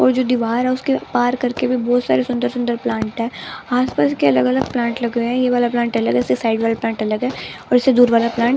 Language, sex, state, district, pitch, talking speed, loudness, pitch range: Hindi, female, Bihar, West Champaran, 240 Hz, 260 wpm, -18 LUFS, 225-250 Hz